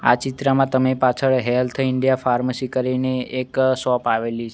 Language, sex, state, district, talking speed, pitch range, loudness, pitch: Gujarati, male, Gujarat, Gandhinagar, 145 wpm, 125-130 Hz, -20 LUFS, 130 Hz